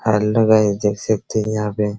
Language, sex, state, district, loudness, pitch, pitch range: Hindi, male, Bihar, Araria, -18 LUFS, 105 Hz, 105-110 Hz